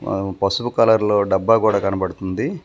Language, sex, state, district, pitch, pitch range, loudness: Telugu, male, Telangana, Komaram Bheem, 100 Hz, 95-110 Hz, -18 LUFS